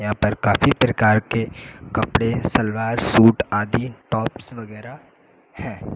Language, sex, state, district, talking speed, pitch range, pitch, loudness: Hindi, male, Uttar Pradesh, Lucknow, 120 wpm, 105-120 Hz, 110 Hz, -19 LUFS